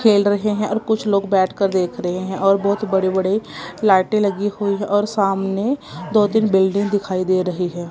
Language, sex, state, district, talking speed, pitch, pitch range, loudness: Hindi, female, Punjab, Kapurthala, 205 wpm, 200 Hz, 185-210 Hz, -19 LUFS